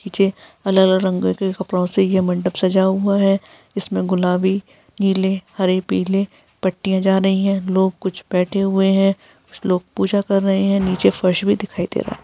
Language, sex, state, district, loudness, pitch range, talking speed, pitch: Hindi, female, Bihar, Gaya, -18 LUFS, 185-195 Hz, 170 wpm, 190 Hz